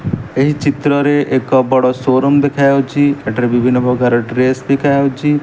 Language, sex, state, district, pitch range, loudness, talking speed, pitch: Odia, male, Odisha, Malkangiri, 125-145 Hz, -13 LUFS, 155 wpm, 140 Hz